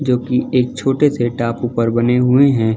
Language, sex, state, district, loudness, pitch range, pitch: Hindi, male, Chhattisgarh, Balrampur, -16 LUFS, 120-130 Hz, 125 Hz